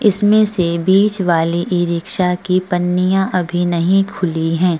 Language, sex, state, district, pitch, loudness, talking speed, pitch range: Hindi, female, Uttar Pradesh, Budaun, 180 Hz, -16 LUFS, 140 wpm, 175-190 Hz